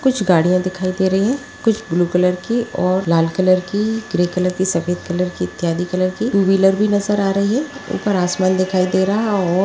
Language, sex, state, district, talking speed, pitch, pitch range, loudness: Hindi, female, Chhattisgarh, Sukma, 230 wpm, 185 Hz, 180-205 Hz, -17 LUFS